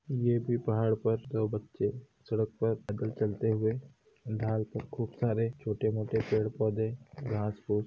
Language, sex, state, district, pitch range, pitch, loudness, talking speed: Hindi, male, Uttar Pradesh, Hamirpur, 110-120 Hz, 110 Hz, -32 LUFS, 160 wpm